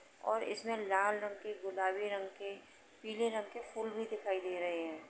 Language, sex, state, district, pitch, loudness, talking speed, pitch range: Hindi, female, Uttar Pradesh, Jalaun, 205 Hz, -38 LUFS, 200 wpm, 190-220 Hz